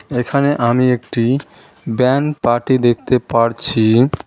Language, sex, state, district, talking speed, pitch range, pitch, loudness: Bengali, male, West Bengal, Cooch Behar, 100 wpm, 120-135 Hz, 125 Hz, -15 LUFS